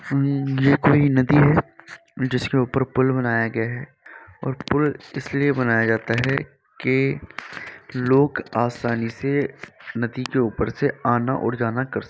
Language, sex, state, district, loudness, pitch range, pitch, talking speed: Hindi, male, Uttar Pradesh, Varanasi, -21 LUFS, 120-140 Hz, 130 Hz, 150 wpm